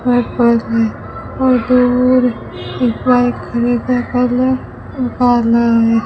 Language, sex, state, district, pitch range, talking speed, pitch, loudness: Hindi, female, Rajasthan, Bikaner, 235-250 Hz, 90 wpm, 245 Hz, -14 LUFS